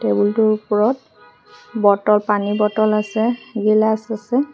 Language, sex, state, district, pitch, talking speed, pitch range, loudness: Assamese, female, Assam, Hailakandi, 215 Hz, 120 wpm, 210-220 Hz, -18 LUFS